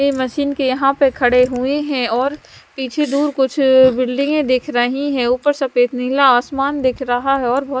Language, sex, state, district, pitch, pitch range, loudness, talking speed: Hindi, male, Punjab, Fazilka, 265 Hz, 255-280 Hz, -16 LUFS, 190 wpm